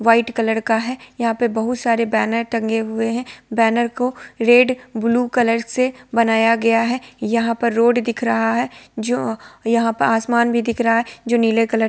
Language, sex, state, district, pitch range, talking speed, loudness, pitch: Hindi, female, Bihar, Sitamarhi, 225-240 Hz, 195 wpm, -18 LUFS, 230 Hz